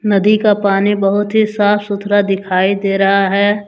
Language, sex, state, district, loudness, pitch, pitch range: Hindi, male, Jharkhand, Deoghar, -13 LUFS, 200 Hz, 195-205 Hz